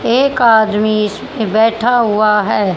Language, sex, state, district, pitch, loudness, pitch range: Hindi, female, Haryana, Charkhi Dadri, 220 Hz, -13 LUFS, 210-235 Hz